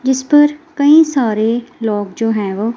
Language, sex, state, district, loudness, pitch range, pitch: Hindi, female, Himachal Pradesh, Shimla, -14 LUFS, 220-295 Hz, 240 Hz